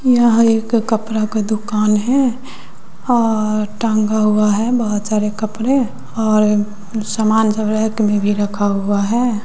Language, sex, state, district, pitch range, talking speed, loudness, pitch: Hindi, female, Bihar, West Champaran, 210-225 Hz, 140 wpm, -16 LUFS, 215 Hz